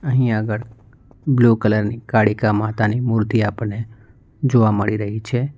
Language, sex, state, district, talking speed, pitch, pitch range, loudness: Gujarati, male, Gujarat, Valsad, 140 wpm, 110 Hz, 105-120 Hz, -19 LUFS